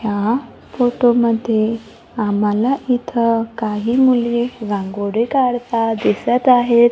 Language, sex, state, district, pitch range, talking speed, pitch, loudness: Marathi, female, Maharashtra, Gondia, 220-245 Hz, 85 wpm, 235 Hz, -17 LUFS